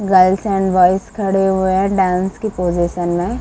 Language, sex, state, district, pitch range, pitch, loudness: Hindi, female, Uttar Pradesh, Muzaffarnagar, 180-195 Hz, 190 Hz, -16 LUFS